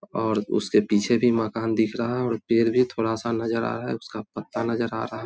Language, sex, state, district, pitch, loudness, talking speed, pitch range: Hindi, male, Bihar, Vaishali, 115 Hz, -24 LUFS, 250 wpm, 110-120 Hz